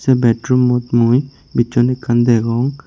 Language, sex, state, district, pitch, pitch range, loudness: Chakma, male, Tripura, Unakoti, 120 Hz, 120-130 Hz, -15 LUFS